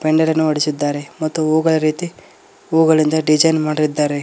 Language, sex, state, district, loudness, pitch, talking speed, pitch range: Kannada, male, Karnataka, Koppal, -16 LUFS, 155 Hz, 115 wpm, 150-160 Hz